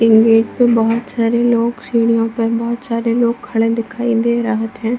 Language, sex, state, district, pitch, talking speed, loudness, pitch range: Hindi, female, Bihar, Supaul, 230 Hz, 190 wpm, -15 LUFS, 225-235 Hz